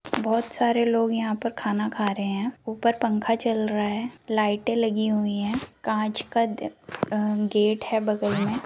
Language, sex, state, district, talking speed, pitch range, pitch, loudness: Hindi, female, Bihar, Saran, 165 wpm, 210-230 Hz, 220 Hz, -25 LUFS